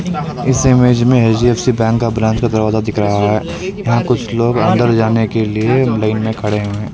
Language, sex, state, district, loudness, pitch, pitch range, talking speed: Hindi, male, Karnataka, Bangalore, -14 LUFS, 115 Hz, 110-125 Hz, 205 wpm